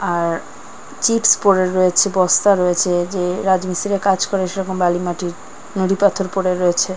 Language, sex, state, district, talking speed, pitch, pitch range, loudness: Bengali, female, West Bengal, Kolkata, 155 wpm, 185 Hz, 180-195 Hz, -17 LUFS